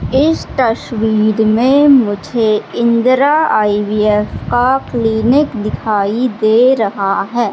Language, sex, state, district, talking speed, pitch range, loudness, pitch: Hindi, female, Madhya Pradesh, Katni, 95 wpm, 210-255 Hz, -13 LUFS, 225 Hz